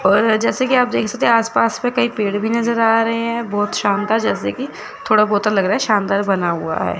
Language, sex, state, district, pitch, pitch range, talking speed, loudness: Hindi, female, Chandigarh, Chandigarh, 220 Hz, 205-235 Hz, 250 wpm, -17 LUFS